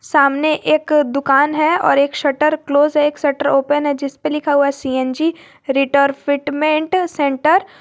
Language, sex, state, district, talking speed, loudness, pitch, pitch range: Hindi, female, Jharkhand, Garhwa, 160 wpm, -16 LUFS, 290 Hz, 280-305 Hz